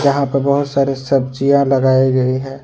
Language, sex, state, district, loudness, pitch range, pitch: Hindi, male, Jharkhand, Ranchi, -15 LUFS, 130-140 Hz, 135 Hz